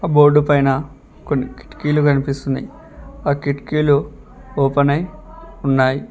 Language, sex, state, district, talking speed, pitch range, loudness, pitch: Telugu, male, Telangana, Mahabubabad, 110 wpm, 140-150 Hz, -17 LUFS, 145 Hz